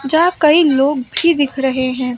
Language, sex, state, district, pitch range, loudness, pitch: Hindi, female, Maharashtra, Mumbai Suburban, 260-320 Hz, -14 LUFS, 280 Hz